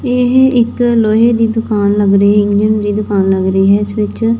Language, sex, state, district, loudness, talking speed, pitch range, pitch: Punjabi, female, Punjab, Fazilka, -11 LUFS, 220 wpm, 205-230 Hz, 210 Hz